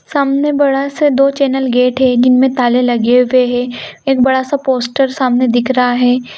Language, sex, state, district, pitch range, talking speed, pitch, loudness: Hindi, female, Bihar, Gopalganj, 250-275 Hz, 190 wpm, 255 Hz, -12 LUFS